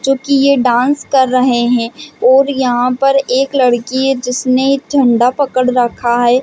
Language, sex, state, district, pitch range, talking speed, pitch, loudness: Hindi, female, Chhattisgarh, Bastar, 245-275 Hz, 170 wpm, 255 Hz, -12 LUFS